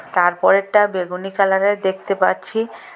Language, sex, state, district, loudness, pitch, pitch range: Bengali, female, Assam, Hailakandi, -18 LUFS, 195 Hz, 185-205 Hz